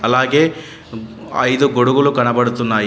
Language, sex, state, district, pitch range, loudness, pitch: Telugu, male, Telangana, Adilabad, 115-140 Hz, -15 LUFS, 125 Hz